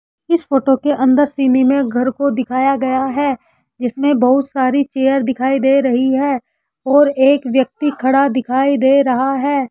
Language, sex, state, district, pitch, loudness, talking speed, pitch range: Hindi, male, Rajasthan, Jaipur, 270 Hz, -15 LUFS, 165 wpm, 260-280 Hz